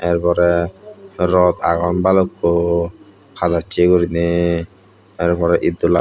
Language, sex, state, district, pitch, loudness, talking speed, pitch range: Chakma, male, Tripura, Dhalai, 85 Hz, -17 LUFS, 100 wpm, 85-90 Hz